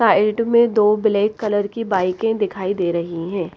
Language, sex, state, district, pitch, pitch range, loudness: Hindi, female, Haryana, Rohtak, 205 Hz, 190-220 Hz, -19 LUFS